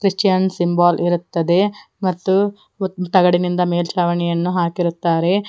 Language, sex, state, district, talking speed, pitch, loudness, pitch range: Kannada, female, Karnataka, Koppal, 75 wpm, 180 Hz, -18 LUFS, 175-190 Hz